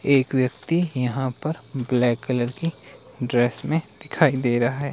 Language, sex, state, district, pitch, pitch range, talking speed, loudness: Hindi, male, Himachal Pradesh, Shimla, 130 Hz, 125-155 Hz, 160 wpm, -23 LUFS